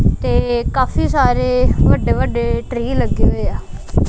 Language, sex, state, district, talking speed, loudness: Punjabi, female, Punjab, Kapurthala, 130 wpm, -17 LUFS